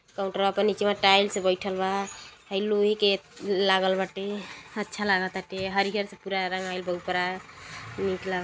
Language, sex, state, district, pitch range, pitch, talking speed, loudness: Bhojpuri, female, Uttar Pradesh, Gorakhpur, 190-200 Hz, 195 Hz, 155 wpm, -26 LUFS